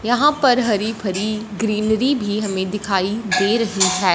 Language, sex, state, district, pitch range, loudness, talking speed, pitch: Hindi, female, Punjab, Fazilka, 195-225 Hz, -19 LUFS, 160 wpm, 210 Hz